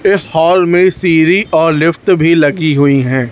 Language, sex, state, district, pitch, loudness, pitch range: Hindi, male, Chhattisgarh, Raipur, 165 Hz, -10 LUFS, 155-180 Hz